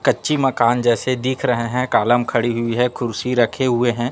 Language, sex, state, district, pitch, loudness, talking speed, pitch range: Hindi, male, Chhattisgarh, Raipur, 120 Hz, -18 LUFS, 205 wpm, 120-125 Hz